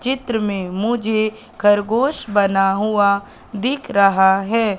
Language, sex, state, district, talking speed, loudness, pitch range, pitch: Hindi, female, Madhya Pradesh, Katni, 115 wpm, -18 LUFS, 200-230 Hz, 210 Hz